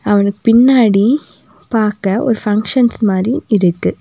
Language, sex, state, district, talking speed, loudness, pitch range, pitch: Tamil, female, Tamil Nadu, Nilgiris, 105 wpm, -13 LUFS, 200-240 Hz, 210 Hz